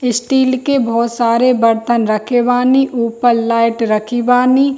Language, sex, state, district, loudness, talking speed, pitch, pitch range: Hindi, female, Bihar, Darbhanga, -13 LUFS, 140 wpm, 240 Hz, 230-255 Hz